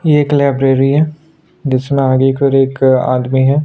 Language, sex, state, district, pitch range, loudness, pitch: Hindi, male, Chhattisgarh, Sukma, 130-150 Hz, -12 LUFS, 135 Hz